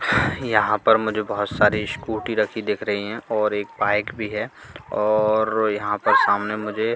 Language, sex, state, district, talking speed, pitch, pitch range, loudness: Hindi, male, Bihar, Katihar, 170 wpm, 105 Hz, 105-110 Hz, -21 LUFS